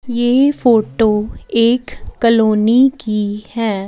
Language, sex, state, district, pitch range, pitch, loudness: Hindi, female, Chandigarh, Chandigarh, 215-245 Hz, 230 Hz, -14 LUFS